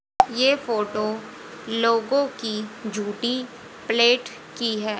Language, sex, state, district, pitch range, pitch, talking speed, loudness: Hindi, female, Haryana, Rohtak, 215-245 Hz, 230 Hz, 95 wpm, -23 LUFS